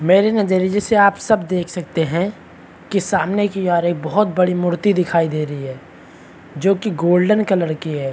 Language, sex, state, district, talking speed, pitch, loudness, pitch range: Hindi, male, Chhattisgarh, Bastar, 200 wpm, 180 Hz, -18 LUFS, 170-200 Hz